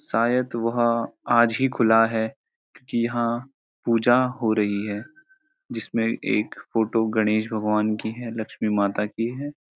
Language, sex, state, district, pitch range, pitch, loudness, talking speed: Hindi, male, Uttarakhand, Uttarkashi, 110-120 Hz, 115 Hz, -24 LUFS, 140 wpm